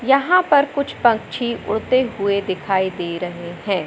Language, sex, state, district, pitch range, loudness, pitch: Hindi, male, Madhya Pradesh, Katni, 190-260 Hz, -19 LUFS, 215 Hz